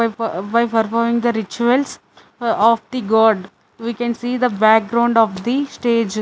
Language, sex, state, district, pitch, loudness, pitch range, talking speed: English, female, Chandigarh, Chandigarh, 230 Hz, -17 LUFS, 225-240 Hz, 155 wpm